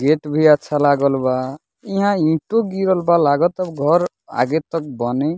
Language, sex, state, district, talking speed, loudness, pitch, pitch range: Bhojpuri, male, Bihar, Muzaffarpur, 155 wpm, -18 LUFS, 155 Hz, 140-175 Hz